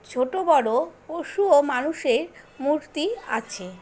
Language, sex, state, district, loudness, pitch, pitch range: Bengali, female, West Bengal, Jhargram, -23 LUFS, 305 Hz, 270-360 Hz